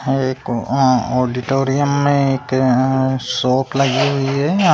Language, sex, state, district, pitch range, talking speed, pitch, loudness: Hindi, male, Bihar, Purnia, 130-140 Hz, 100 wpm, 135 Hz, -17 LUFS